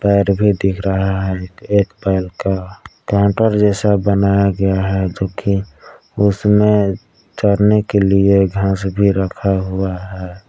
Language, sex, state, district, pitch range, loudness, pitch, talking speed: Hindi, male, Jharkhand, Palamu, 95-100 Hz, -16 LUFS, 100 Hz, 135 wpm